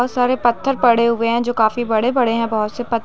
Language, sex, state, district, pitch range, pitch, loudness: Hindi, female, Chhattisgarh, Bilaspur, 230-245 Hz, 235 Hz, -17 LUFS